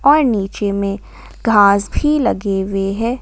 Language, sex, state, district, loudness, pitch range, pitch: Hindi, female, Jharkhand, Garhwa, -16 LUFS, 195-240 Hz, 205 Hz